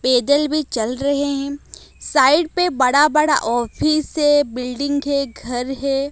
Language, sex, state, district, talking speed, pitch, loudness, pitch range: Hindi, female, Odisha, Malkangiri, 135 wpm, 280 Hz, -18 LUFS, 255-295 Hz